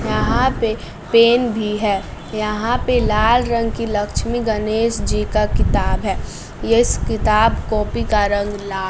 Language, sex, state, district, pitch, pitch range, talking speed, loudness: Hindi, female, Bihar, West Champaran, 215 Hz, 205-230 Hz, 140 wpm, -18 LUFS